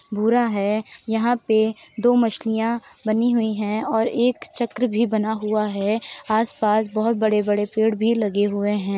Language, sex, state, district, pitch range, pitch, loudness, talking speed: Hindi, female, Uttar Pradesh, Jalaun, 210-230 Hz, 220 Hz, -21 LUFS, 160 wpm